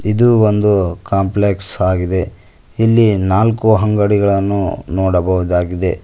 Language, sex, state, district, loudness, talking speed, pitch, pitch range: Kannada, male, Karnataka, Koppal, -14 LUFS, 80 wpm, 100 Hz, 95-105 Hz